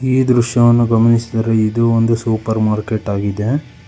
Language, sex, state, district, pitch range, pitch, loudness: Kannada, male, Karnataka, Bangalore, 110-120 Hz, 115 Hz, -15 LUFS